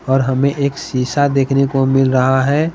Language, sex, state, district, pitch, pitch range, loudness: Hindi, male, Bihar, Patna, 135 Hz, 130-140 Hz, -15 LUFS